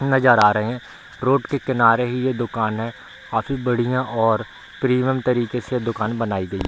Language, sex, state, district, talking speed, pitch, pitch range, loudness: Hindi, male, Bihar, Bhagalpur, 190 wpm, 120 Hz, 115-130 Hz, -20 LUFS